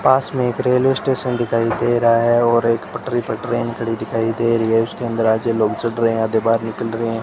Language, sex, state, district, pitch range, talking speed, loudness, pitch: Hindi, male, Rajasthan, Bikaner, 115-120 Hz, 255 wpm, -18 LUFS, 115 Hz